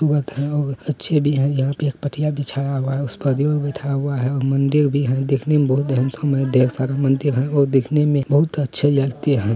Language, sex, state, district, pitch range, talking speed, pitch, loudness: Hindi, male, Bihar, Lakhisarai, 135-145 Hz, 225 wpm, 140 Hz, -19 LUFS